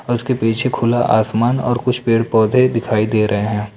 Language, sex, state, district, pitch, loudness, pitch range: Hindi, male, Bihar, Lakhisarai, 115 Hz, -16 LUFS, 110-125 Hz